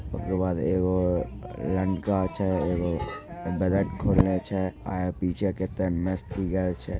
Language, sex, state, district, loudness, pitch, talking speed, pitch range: Maithili, male, Bihar, Begusarai, -27 LUFS, 95 Hz, 130 wpm, 90-95 Hz